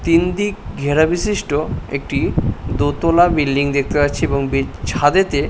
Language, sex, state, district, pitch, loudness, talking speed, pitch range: Bengali, male, West Bengal, Paschim Medinipur, 145 Hz, -17 LUFS, 120 wpm, 140-170 Hz